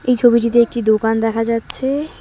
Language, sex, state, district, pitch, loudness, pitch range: Bengali, female, West Bengal, Cooch Behar, 235 Hz, -16 LUFS, 225-250 Hz